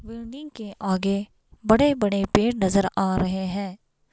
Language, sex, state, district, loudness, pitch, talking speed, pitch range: Hindi, female, Himachal Pradesh, Shimla, -23 LUFS, 200 Hz, 145 wpm, 190-220 Hz